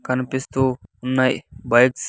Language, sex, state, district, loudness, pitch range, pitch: Telugu, male, Andhra Pradesh, Sri Satya Sai, -20 LUFS, 125-130 Hz, 130 Hz